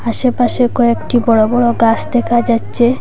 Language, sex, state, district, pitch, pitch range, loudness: Bengali, female, Assam, Hailakandi, 240 Hz, 230-245 Hz, -13 LUFS